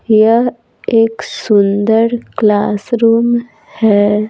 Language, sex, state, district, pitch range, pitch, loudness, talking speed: Hindi, female, Bihar, Patna, 210-235 Hz, 225 Hz, -12 LUFS, 70 wpm